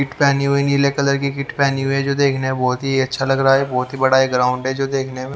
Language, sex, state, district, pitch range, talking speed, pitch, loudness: Hindi, male, Haryana, Jhajjar, 130-140 Hz, 315 wpm, 135 Hz, -18 LUFS